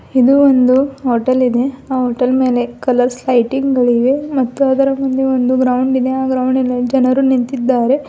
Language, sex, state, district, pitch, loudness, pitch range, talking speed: Kannada, female, Karnataka, Bidar, 260 Hz, -14 LUFS, 250-265 Hz, 140 wpm